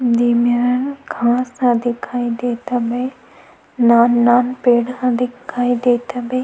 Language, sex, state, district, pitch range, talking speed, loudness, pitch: Chhattisgarhi, female, Chhattisgarh, Sukma, 240-250 Hz, 120 wpm, -17 LUFS, 245 Hz